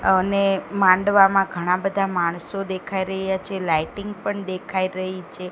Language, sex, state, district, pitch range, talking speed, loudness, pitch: Gujarati, female, Gujarat, Gandhinagar, 185-195 Hz, 140 wpm, -22 LUFS, 190 Hz